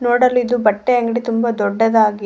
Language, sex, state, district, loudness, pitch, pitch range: Kannada, female, Karnataka, Koppal, -16 LUFS, 230 Hz, 215-245 Hz